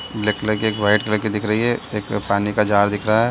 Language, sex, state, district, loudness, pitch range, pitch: Hindi, male, Chhattisgarh, Bilaspur, -19 LUFS, 105-110 Hz, 105 Hz